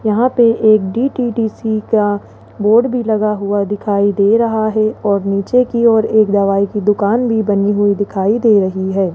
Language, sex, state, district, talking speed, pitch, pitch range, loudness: Hindi, male, Rajasthan, Jaipur, 185 wpm, 215 Hz, 200-225 Hz, -14 LUFS